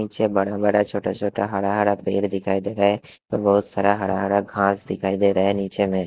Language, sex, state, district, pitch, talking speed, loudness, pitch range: Hindi, male, Haryana, Jhajjar, 100 Hz, 235 wpm, -21 LUFS, 95-100 Hz